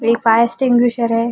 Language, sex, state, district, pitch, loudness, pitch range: Hindi, female, Uttar Pradesh, Budaun, 235 Hz, -15 LUFS, 230-240 Hz